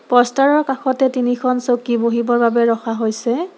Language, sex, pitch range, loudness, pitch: Assamese, female, 235-265 Hz, -17 LUFS, 245 Hz